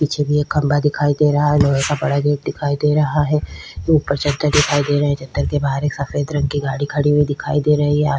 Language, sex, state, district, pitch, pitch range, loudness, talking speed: Hindi, female, Uttar Pradesh, Hamirpur, 145 Hz, 140-150 Hz, -17 LUFS, 265 wpm